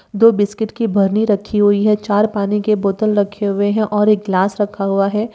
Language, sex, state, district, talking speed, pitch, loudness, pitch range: Hindi, female, Uttar Pradesh, Ghazipur, 225 wpm, 205 Hz, -16 LUFS, 200-215 Hz